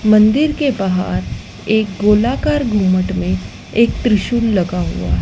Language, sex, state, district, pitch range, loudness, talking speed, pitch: Hindi, female, Madhya Pradesh, Dhar, 185-235 Hz, -16 LUFS, 125 wpm, 210 Hz